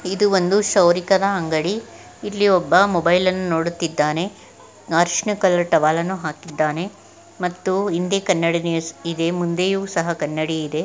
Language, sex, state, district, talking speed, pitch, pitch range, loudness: Kannada, female, Karnataka, Gulbarga, 125 wpm, 175 Hz, 165-190 Hz, -19 LUFS